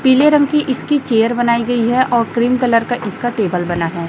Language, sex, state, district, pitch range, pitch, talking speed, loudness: Hindi, female, Chhattisgarh, Raipur, 225-260 Hz, 240 Hz, 235 wpm, -15 LUFS